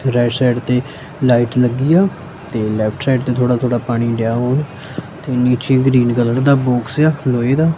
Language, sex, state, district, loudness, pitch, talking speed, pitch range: Punjabi, male, Punjab, Kapurthala, -15 LUFS, 125 Hz, 170 wpm, 120-140 Hz